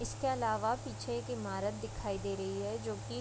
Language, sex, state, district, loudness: Hindi, female, Bihar, Vaishali, -37 LUFS